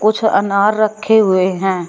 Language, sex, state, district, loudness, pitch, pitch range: Hindi, female, Uttar Pradesh, Shamli, -14 LUFS, 205 Hz, 190-215 Hz